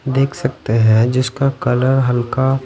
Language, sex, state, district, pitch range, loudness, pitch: Hindi, male, Bihar, West Champaran, 125-135 Hz, -16 LUFS, 130 Hz